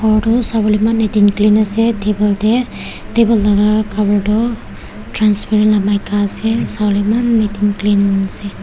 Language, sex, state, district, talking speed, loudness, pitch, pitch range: Nagamese, female, Nagaland, Kohima, 165 wpm, -14 LUFS, 210 Hz, 205-220 Hz